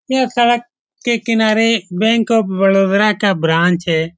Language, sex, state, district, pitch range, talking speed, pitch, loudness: Hindi, male, Bihar, Saran, 190-230 Hz, 145 wpm, 215 Hz, -14 LUFS